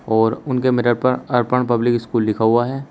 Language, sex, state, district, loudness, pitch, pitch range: Hindi, male, Uttar Pradesh, Shamli, -18 LUFS, 120 Hz, 115-125 Hz